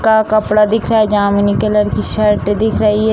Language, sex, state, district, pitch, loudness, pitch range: Hindi, female, Bihar, Jamui, 215 Hz, -13 LUFS, 210-220 Hz